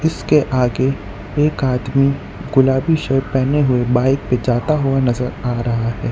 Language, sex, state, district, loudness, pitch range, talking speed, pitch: Hindi, male, Gujarat, Valsad, -17 LUFS, 125-140 Hz, 155 wpm, 130 Hz